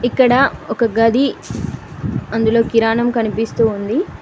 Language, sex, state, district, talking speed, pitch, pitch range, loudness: Telugu, female, Telangana, Mahabubabad, 100 wpm, 230 Hz, 225-245 Hz, -16 LUFS